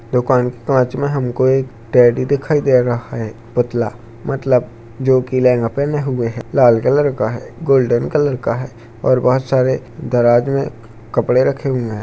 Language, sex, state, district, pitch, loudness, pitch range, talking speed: Hindi, male, Rajasthan, Churu, 125 Hz, -16 LUFS, 120-135 Hz, 180 wpm